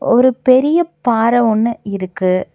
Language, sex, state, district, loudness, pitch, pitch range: Tamil, female, Tamil Nadu, Nilgiris, -14 LUFS, 235 Hz, 205-255 Hz